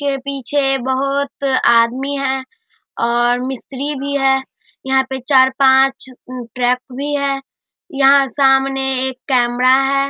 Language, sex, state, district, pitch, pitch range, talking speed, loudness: Hindi, male, Bihar, Darbhanga, 270 Hz, 260-275 Hz, 130 wpm, -16 LUFS